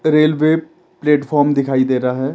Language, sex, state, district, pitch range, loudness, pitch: Hindi, male, Himachal Pradesh, Shimla, 135-155 Hz, -16 LUFS, 150 Hz